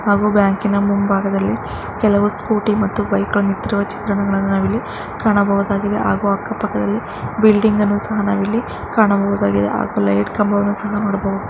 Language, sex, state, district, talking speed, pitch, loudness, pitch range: Kannada, female, Karnataka, Mysore, 125 wpm, 205 Hz, -17 LUFS, 200-210 Hz